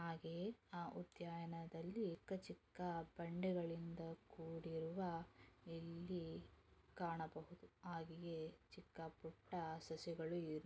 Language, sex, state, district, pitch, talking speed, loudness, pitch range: Kannada, female, Karnataka, Mysore, 165 Hz, 75 wpm, -50 LUFS, 160-175 Hz